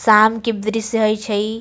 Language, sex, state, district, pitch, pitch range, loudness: Maithili, female, Bihar, Samastipur, 220 Hz, 215-225 Hz, -18 LUFS